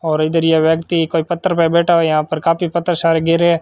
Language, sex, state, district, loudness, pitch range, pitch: Hindi, male, Rajasthan, Bikaner, -15 LUFS, 160-170 Hz, 165 Hz